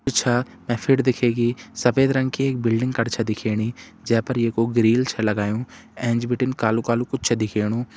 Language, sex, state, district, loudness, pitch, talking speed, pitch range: Hindi, male, Uttarakhand, Tehri Garhwal, -22 LUFS, 120 Hz, 180 wpm, 115-125 Hz